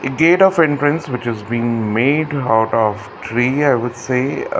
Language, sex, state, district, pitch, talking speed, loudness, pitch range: English, male, Karnataka, Bangalore, 125 Hz, 185 wpm, -16 LUFS, 115-145 Hz